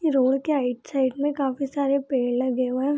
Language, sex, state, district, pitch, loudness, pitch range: Hindi, female, Bihar, Purnia, 270 Hz, -24 LUFS, 255-280 Hz